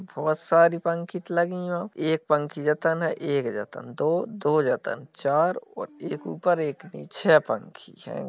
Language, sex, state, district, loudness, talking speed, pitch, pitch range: Hindi, male, Uttar Pradesh, Jalaun, -25 LUFS, 205 wpm, 165 Hz, 150-175 Hz